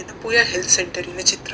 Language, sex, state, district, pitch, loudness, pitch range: Kannada, female, Karnataka, Dakshina Kannada, 185 Hz, -18 LUFS, 180-200 Hz